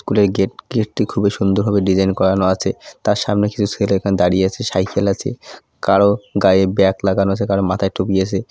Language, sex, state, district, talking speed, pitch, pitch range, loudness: Bengali, male, West Bengal, Purulia, 205 wpm, 100 Hz, 95-105 Hz, -17 LUFS